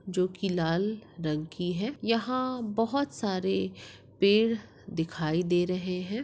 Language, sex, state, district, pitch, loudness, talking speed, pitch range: Hindi, female, Maharashtra, Sindhudurg, 185 Hz, -29 LUFS, 135 wpm, 165-220 Hz